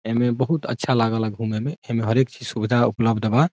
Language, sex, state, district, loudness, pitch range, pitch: Bhojpuri, male, Bihar, Saran, -22 LUFS, 115-125 Hz, 120 Hz